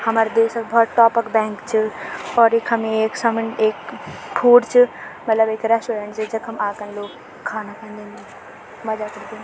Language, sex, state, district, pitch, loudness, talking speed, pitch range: Garhwali, female, Uttarakhand, Tehri Garhwal, 225 Hz, -19 LUFS, 170 wpm, 215-230 Hz